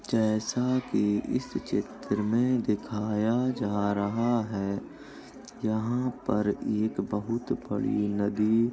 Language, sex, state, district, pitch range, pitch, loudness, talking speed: Hindi, male, Uttar Pradesh, Jalaun, 105-120 Hz, 110 Hz, -29 LUFS, 110 wpm